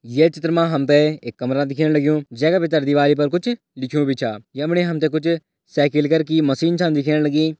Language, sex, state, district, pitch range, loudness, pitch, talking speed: Garhwali, male, Uttarakhand, Tehri Garhwal, 145-160 Hz, -19 LUFS, 150 Hz, 235 wpm